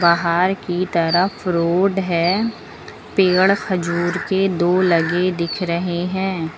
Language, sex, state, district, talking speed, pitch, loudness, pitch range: Hindi, female, Uttar Pradesh, Lucknow, 120 wpm, 180 Hz, -18 LUFS, 170-190 Hz